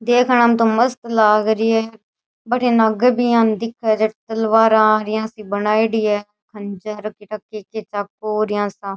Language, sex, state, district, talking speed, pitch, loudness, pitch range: Rajasthani, female, Rajasthan, Churu, 175 wpm, 220 Hz, -17 LUFS, 210-225 Hz